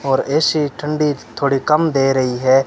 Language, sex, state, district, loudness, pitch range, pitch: Hindi, male, Rajasthan, Bikaner, -17 LUFS, 135-150 Hz, 140 Hz